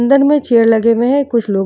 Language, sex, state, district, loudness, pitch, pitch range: Hindi, female, Uttar Pradesh, Jyotiba Phule Nagar, -12 LUFS, 235 Hz, 230-275 Hz